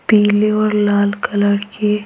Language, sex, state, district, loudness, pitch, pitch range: Hindi, female, Bihar, Patna, -15 LUFS, 210 Hz, 205-210 Hz